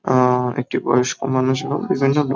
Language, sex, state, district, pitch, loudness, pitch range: Bengali, male, West Bengal, Kolkata, 130 Hz, -19 LUFS, 125-135 Hz